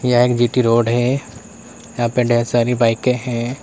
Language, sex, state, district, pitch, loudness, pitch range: Hindi, male, Uttar Pradesh, Lalitpur, 120 Hz, -17 LUFS, 120-125 Hz